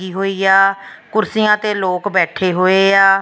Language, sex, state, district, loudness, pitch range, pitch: Punjabi, female, Punjab, Fazilka, -14 LUFS, 190-200 Hz, 195 Hz